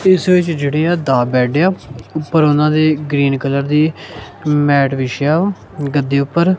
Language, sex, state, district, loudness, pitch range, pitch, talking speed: Punjabi, male, Punjab, Kapurthala, -15 LUFS, 140-160 Hz, 150 Hz, 155 wpm